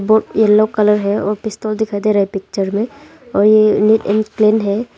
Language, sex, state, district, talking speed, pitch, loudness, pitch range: Hindi, female, Arunachal Pradesh, Longding, 170 wpm, 215 Hz, -15 LUFS, 205-220 Hz